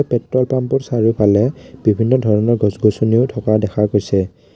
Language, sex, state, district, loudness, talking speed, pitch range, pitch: Assamese, male, Assam, Kamrup Metropolitan, -16 LUFS, 130 wpm, 105-130 Hz, 115 Hz